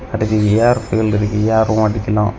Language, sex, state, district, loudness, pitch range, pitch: Tamil, male, Tamil Nadu, Kanyakumari, -15 LUFS, 105-110 Hz, 110 Hz